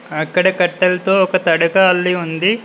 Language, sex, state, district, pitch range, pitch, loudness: Telugu, male, Telangana, Mahabubabad, 175-190 Hz, 180 Hz, -15 LUFS